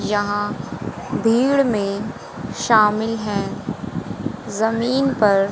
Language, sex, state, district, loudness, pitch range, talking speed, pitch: Hindi, female, Haryana, Jhajjar, -20 LUFS, 205-230 Hz, 75 wpm, 215 Hz